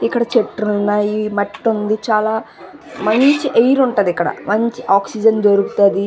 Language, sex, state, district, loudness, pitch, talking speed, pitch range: Telugu, female, Andhra Pradesh, Visakhapatnam, -16 LUFS, 215 Hz, 130 wpm, 205-230 Hz